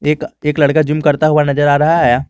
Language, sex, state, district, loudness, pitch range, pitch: Hindi, male, Jharkhand, Garhwa, -13 LUFS, 145-155 Hz, 150 Hz